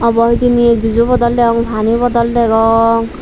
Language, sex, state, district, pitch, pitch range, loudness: Chakma, female, Tripura, Dhalai, 235 Hz, 230-235 Hz, -12 LUFS